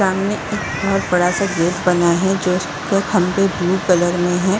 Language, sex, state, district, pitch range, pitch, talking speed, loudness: Hindi, female, Bihar, Saharsa, 175-195 Hz, 185 Hz, 180 wpm, -17 LUFS